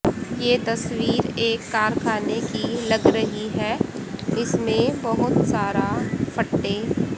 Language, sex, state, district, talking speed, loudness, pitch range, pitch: Hindi, female, Haryana, Jhajjar, 100 wpm, -23 LUFS, 220-235 Hz, 230 Hz